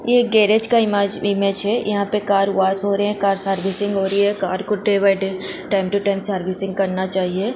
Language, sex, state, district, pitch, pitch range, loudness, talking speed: Hindi, female, Goa, North and South Goa, 200 Hz, 195-205 Hz, -18 LUFS, 200 wpm